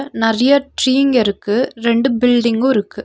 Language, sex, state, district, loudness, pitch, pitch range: Tamil, female, Tamil Nadu, Nilgiris, -15 LUFS, 240 Hz, 225-265 Hz